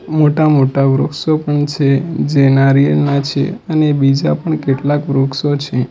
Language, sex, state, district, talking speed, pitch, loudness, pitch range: Gujarati, male, Gujarat, Valsad, 140 wpm, 140 Hz, -14 LUFS, 135-150 Hz